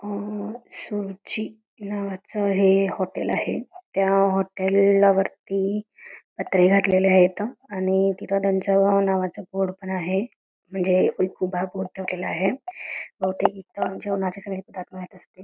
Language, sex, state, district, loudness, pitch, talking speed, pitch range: Marathi, female, Karnataka, Belgaum, -23 LUFS, 195 Hz, 95 wpm, 190-205 Hz